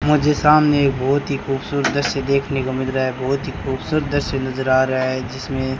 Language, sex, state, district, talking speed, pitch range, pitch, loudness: Hindi, male, Rajasthan, Bikaner, 220 wpm, 130-145 Hz, 135 Hz, -19 LUFS